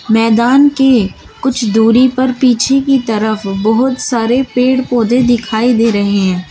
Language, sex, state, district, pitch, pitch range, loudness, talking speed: Hindi, female, Uttar Pradesh, Shamli, 240 Hz, 220-255 Hz, -12 LUFS, 150 wpm